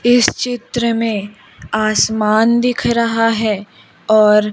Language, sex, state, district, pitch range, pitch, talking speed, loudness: Hindi, female, Madhya Pradesh, Umaria, 215-235 Hz, 225 Hz, 105 wpm, -15 LUFS